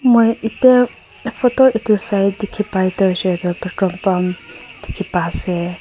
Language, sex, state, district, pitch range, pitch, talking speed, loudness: Nagamese, female, Nagaland, Kohima, 180-230 Hz, 195 Hz, 145 wpm, -16 LUFS